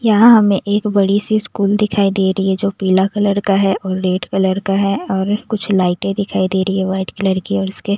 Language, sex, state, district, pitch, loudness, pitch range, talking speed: Hindi, female, Bihar, Patna, 195 Hz, -16 LUFS, 190-205 Hz, 250 wpm